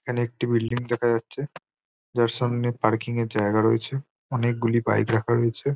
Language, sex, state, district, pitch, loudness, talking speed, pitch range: Bengali, male, West Bengal, Jhargram, 120 Hz, -25 LUFS, 155 wpm, 115-120 Hz